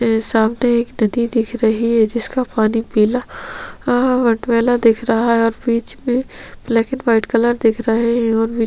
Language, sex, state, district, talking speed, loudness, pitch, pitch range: Hindi, female, Chhattisgarh, Sukma, 145 wpm, -17 LUFS, 230 Hz, 225-240 Hz